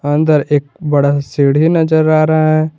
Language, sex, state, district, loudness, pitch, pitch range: Hindi, male, Jharkhand, Garhwa, -12 LUFS, 155 Hz, 145-155 Hz